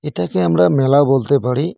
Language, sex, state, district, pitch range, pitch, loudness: Bengali, male, West Bengal, Cooch Behar, 90-145 Hz, 135 Hz, -15 LUFS